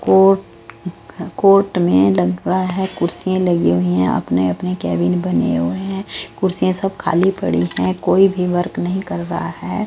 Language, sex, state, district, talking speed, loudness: Hindi, female, Bihar, Katihar, 165 wpm, -17 LUFS